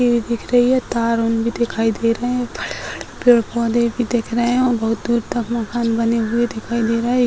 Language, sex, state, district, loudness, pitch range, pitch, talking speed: Hindi, female, Bihar, Sitamarhi, -19 LUFS, 230-240 Hz, 235 Hz, 240 wpm